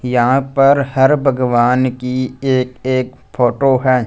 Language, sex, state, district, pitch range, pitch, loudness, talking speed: Hindi, male, Punjab, Fazilka, 125-135 Hz, 130 Hz, -15 LUFS, 130 wpm